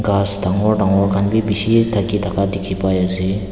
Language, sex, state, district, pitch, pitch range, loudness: Nagamese, male, Nagaland, Dimapur, 100 Hz, 95-105 Hz, -16 LUFS